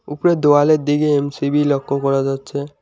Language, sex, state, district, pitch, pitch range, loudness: Bengali, male, West Bengal, Alipurduar, 145 Hz, 140-145 Hz, -17 LUFS